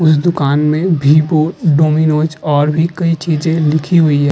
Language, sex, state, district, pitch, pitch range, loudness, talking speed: Hindi, male, Uttar Pradesh, Muzaffarnagar, 155 Hz, 150-165 Hz, -13 LUFS, 155 wpm